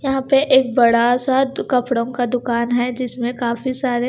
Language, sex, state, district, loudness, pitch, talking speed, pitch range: Hindi, female, Punjab, Kapurthala, -18 LUFS, 250 Hz, 175 wpm, 240-265 Hz